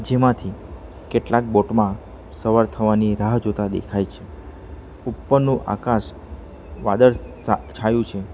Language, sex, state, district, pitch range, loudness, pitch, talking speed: Gujarati, male, Gujarat, Valsad, 90-115 Hz, -20 LUFS, 105 Hz, 110 wpm